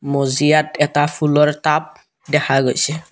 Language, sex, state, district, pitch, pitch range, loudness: Assamese, male, Assam, Kamrup Metropolitan, 150 Hz, 140-150 Hz, -16 LUFS